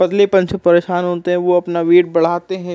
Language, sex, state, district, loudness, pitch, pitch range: Hindi, male, Uttar Pradesh, Jalaun, -15 LUFS, 175 Hz, 175-185 Hz